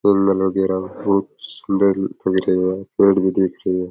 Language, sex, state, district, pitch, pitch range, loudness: Rajasthani, male, Rajasthan, Nagaur, 95 Hz, 95-100 Hz, -19 LUFS